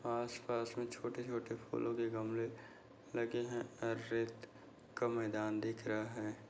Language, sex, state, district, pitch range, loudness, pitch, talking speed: Hindi, male, Goa, North and South Goa, 110-120 Hz, -41 LUFS, 115 Hz, 150 wpm